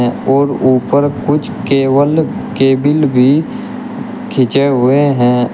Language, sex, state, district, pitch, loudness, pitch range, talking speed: Hindi, male, Uttar Pradesh, Shamli, 140 Hz, -12 LUFS, 130-150 Hz, 95 wpm